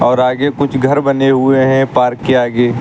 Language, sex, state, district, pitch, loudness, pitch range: Hindi, male, Uttar Pradesh, Lucknow, 130 Hz, -12 LUFS, 125-135 Hz